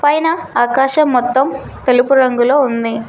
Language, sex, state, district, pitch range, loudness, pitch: Telugu, female, Telangana, Mahabubabad, 245-285 Hz, -13 LUFS, 260 Hz